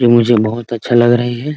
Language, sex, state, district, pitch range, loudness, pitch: Hindi, male, Bihar, Muzaffarpur, 115-120 Hz, -13 LUFS, 120 Hz